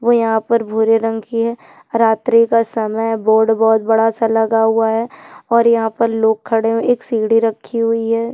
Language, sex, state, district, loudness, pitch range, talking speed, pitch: Hindi, female, Chhattisgarh, Jashpur, -15 LUFS, 225-230 Hz, 215 wpm, 225 Hz